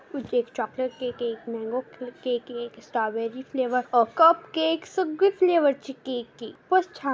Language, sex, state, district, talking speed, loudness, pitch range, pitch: Marathi, male, Maharashtra, Dhule, 145 wpm, -25 LUFS, 240-320 Hz, 255 Hz